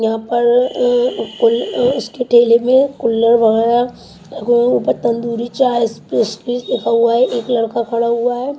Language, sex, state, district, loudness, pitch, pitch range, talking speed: Hindi, female, Haryana, Rohtak, -15 LUFS, 240 Hz, 230-255 Hz, 145 wpm